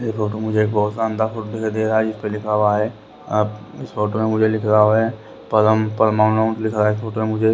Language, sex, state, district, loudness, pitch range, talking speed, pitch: Hindi, male, Haryana, Rohtak, -19 LUFS, 105-110 Hz, 205 wpm, 110 Hz